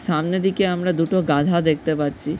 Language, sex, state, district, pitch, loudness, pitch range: Bengali, male, West Bengal, Jhargram, 170 Hz, -20 LUFS, 155-185 Hz